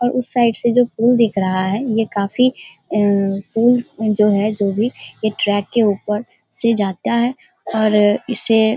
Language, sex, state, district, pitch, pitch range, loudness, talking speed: Hindi, female, Bihar, Darbhanga, 220 Hz, 205-240 Hz, -17 LUFS, 185 wpm